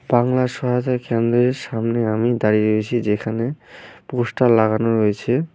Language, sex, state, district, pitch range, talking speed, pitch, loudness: Bengali, male, West Bengal, Malda, 110-125 Hz, 120 wpm, 120 Hz, -19 LUFS